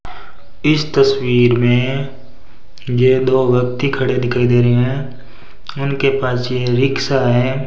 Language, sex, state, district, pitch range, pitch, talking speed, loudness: Hindi, male, Rajasthan, Bikaner, 120-135 Hz, 130 Hz, 125 wpm, -15 LUFS